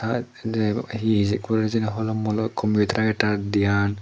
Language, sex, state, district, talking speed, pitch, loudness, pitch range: Chakma, male, Tripura, Dhalai, 165 wpm, 110 Hz, -23 LUFS, 105-110 Hz